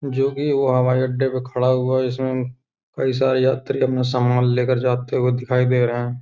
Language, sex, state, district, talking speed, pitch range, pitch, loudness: Hindi, male, Uttar Pradesh, Hamirpur, 200 wpm, 125-130 Hz, 130 Hz, -20 LUFS